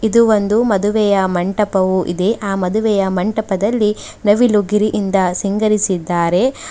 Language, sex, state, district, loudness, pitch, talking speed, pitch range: Kannada, female, Karnataka, Bidar, -15 LUFS, 205 Hz, 100 wpm, 190-215 Hz